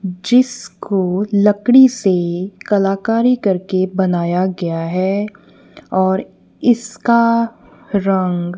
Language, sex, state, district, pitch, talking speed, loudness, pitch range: Hindi, female, Punjab, Kapurthala, 195 Hz, 75 wpm, -16 LUFS, 185-230 Hz